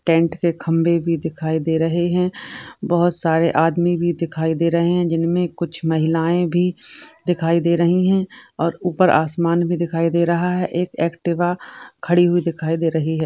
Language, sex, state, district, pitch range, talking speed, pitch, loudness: Hindi, female, Uttar Pradesh, Jalaun, 165-175 Hz, 185 wpm, 170 Hz, -19 LUFS